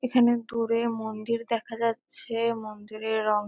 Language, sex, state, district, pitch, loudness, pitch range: Bengali, female, West Bengal, Kolkata, 230 Hz, -28 LUFS, 220-235 Hz